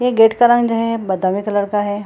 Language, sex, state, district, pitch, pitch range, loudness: Hindi, female, Bihar, Gaya, 210 Hz, 205-230 Hz, -16 LUFS